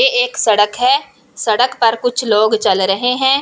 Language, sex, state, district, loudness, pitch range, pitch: Hindi, female, Delhi, New Delhi, -14 LUFS, 215-265 Hz, 245 Hz